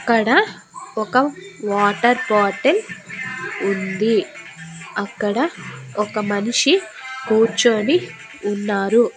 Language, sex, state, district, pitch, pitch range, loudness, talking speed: Telugu, female, Andhra Pradesh, Annamaya, 220 Hz, 205-255 Hz, -19 LUFS, 65 wpm